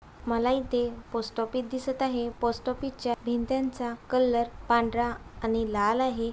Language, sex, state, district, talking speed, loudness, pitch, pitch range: Marathi, female, Maharashtra, Aurangabad, 125 wpm, -29 LUFS, 240 Hz, 235-255 Hz